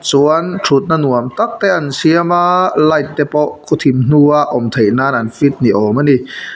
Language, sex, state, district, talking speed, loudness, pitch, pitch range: Mizo, male, Mizoram, Aizawl, 210 wpm, -12 LUFS, 145 Hz, 130-160 Hz